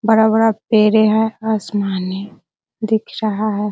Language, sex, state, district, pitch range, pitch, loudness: Hindi, female, Bihar, Araria, 205-220 Hz, 215 Hz, -16 LUFS